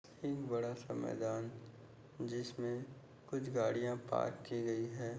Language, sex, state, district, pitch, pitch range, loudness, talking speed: Hindi, male, Goa, North and South Goa, 120 Hz, 115-130 Hz, -41 LUFS, 125 wpm